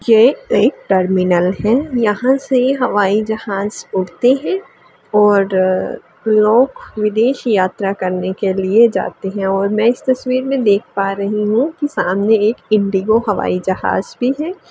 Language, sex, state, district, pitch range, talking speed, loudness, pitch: Hindi, female, Uttar Pradesh, Varanasi, 195-245 Hz, 145 wpm, -15 LUFS, 210 Hz